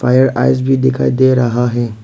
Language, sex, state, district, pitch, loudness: Hindi, male, Arunachal Pradesh, Papum Pare, 120 Hz, -13 LUFS